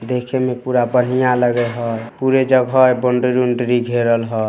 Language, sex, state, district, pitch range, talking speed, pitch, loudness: Hindi, male, Bihar, Samastipur, 120-125 Hz, 200 wpm, 125 Hz, -16 LUFS